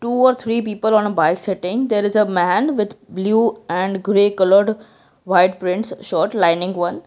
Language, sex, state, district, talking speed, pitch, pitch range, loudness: English, female, Gujarat, Valsad, 185 wpm, 205 Hz, 185-220 Hz, -18 LUFS